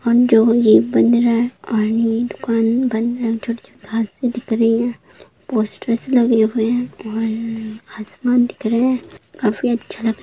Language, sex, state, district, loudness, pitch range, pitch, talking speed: Hindi, female, Bihar, Darbhanga, -18 LUFS, 225-240 Hz, 230 Hz, 175 wpm